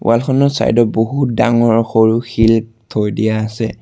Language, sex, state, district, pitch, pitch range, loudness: Assamese, male, Assam, Sonitpur, 115 Hz, 110-120 Hz, -14 LUFS